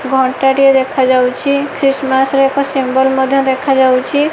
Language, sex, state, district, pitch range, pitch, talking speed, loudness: Odia, female, Odisha, Malkangiri, 265-275 Hz, 270 Hz, 140 wpm, -12 LUFS